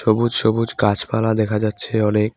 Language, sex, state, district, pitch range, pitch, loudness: Bengali, male, West Bengal, Cooch Behar, 105-110 Hz, 110 Hz, -18 LUFS